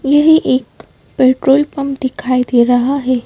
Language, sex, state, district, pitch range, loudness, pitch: Hindi, female, Madhya Pradesh, Bhopal, 255-280 Hz, -13 LUFS, 260 Hz